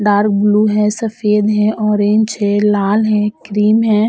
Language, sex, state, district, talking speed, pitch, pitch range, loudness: Hindi, female, Uttar Pradesh, Etah, 160 wpm, 210 Hz, 210-215 Hz, -14 LUFS